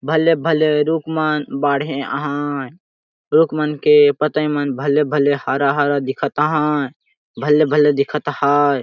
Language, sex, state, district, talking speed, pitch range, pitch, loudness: Sadri, male, Chhattisgarh, Jashpur, 115 wpm, 140-150 Hz, 150 Hz, -17 LUFS